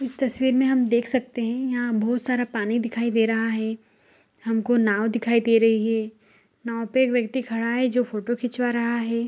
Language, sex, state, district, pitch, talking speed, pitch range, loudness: Hindi, female, Bihar, Saharsa, 235 Hz, 205 wpm, 225-245 Hz, -23 LUFS